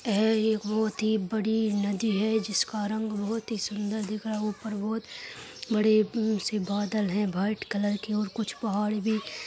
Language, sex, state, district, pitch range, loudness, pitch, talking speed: Hindi, female, Uttar Pradesh, Jyotiba Phule Nagar, 205-220 Hz, -28 LUFS, 215 Hz, 175 wpm